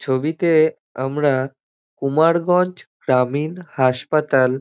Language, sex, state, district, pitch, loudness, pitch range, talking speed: Bengali, male, West Bengal, Dakshin Dinajpur, 145 Hz, -19 LUFS, 130-160 Hz, 65 wpm